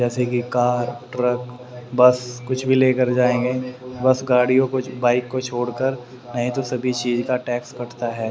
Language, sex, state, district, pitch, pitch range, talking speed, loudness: Hindi, male, Haryana, Rohtak, 125 Hz, 120-125 Hz, 165 wpm, -21 LUFS